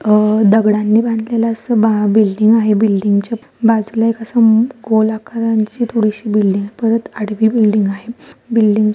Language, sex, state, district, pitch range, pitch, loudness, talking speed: Marathi, female, Maharashtra, Solapur, 210-230 Hz, 220 Hz, -14 LUFS, 140 wpm